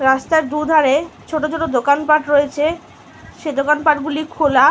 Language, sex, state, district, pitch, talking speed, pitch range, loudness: Bengali, female, West Bengal, Malda, 300 Hz, 125 wpm, 285-310 Hz, -16 LUFS